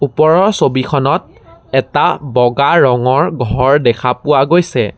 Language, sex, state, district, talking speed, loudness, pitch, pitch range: Assamese, male, Assam, Sonitpur, 110 wpm, -12 LUFS, 135 Hz, 125-145 Hz